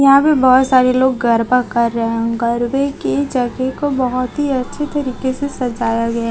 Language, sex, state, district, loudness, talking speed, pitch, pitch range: Hindi, female, Chhattisgarh, Raipur, -16 LUFS, 190 wpm, 255 Hz, 235-275 Hz